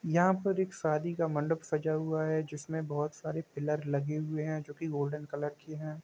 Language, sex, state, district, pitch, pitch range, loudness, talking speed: Hindi, male, Chhattisgarh, Rajnandgaon, 155 Hz, 150-160 Hz, -34 LUFS, 220 wpm